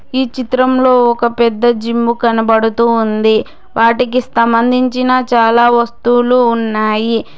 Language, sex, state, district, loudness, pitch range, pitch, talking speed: Telugu, female, Telangana, Hyderabad, -12 LUFS, 230-250 Hz, 235 Hz, 95 wpm